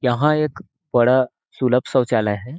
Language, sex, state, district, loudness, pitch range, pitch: Hindi, male, Chhattisgarh, Sarguja, -19 LUFS, 120-145 Hz, 130 Hz